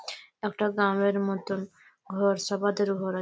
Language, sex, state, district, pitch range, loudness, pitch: Bengali, female, West Bengal, Malda, 195-205 Hz, -28 LUFS, 200 Hz